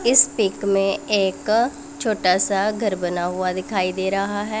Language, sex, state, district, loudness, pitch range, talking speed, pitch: Hindi, female, Punjab, Pathankot, -21 LUFS, 185-220 Hz, 170 wpm, 200 Hz